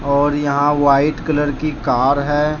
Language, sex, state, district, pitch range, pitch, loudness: Hindi, male, Jharkhand, Deoghar, 140-150 Hz, 145 Hz, -16 LUFS